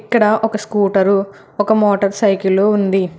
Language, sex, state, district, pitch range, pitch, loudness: Telugu, female, Telangana, Hyderabad, 195-215 Hz, 200 Hz, -15 LUFS